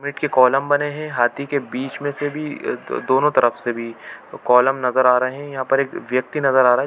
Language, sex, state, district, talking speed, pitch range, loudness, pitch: Hindi, male, Chhattisgarh, Bilaspur, 245 wpm, 125-145 Hz, -19 LUFS, 135 Hz